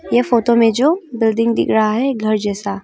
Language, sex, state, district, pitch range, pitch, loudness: Hindi, female, Arunachal Pradesh, Longding, 215-245 Hz, 230 Hz, -16 LUFS